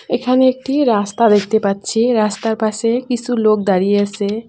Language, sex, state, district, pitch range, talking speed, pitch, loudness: Bengali, female, West Bengal, Cooch Behar, 205-245 Hz, 145 wpm, 220 Hz, -16 LUFS